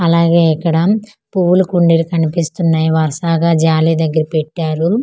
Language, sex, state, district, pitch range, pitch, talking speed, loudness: Telugu, female, Andhra Pradesh, Manyam, 160-170 Hz, 165 Hz, 105 wpm, -14 LUFS